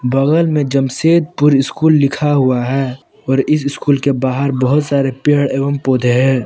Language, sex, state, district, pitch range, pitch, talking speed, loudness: Hindi, male, Jharkhand, Palamu, 135-145 Hz, 140 Hz, 160 wpm, -14 LUFS